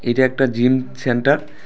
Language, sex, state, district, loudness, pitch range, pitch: Bengali, male, Tripura, West Tripura, -18 LUFS, 125-135 Hz, 130 Hz